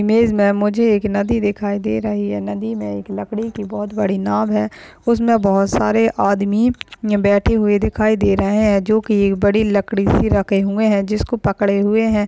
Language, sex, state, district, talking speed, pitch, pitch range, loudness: Hindi, female, Maharashtra, Pune, 205 wpm, 205 Hz, 200-215 Hz, -17 LUFS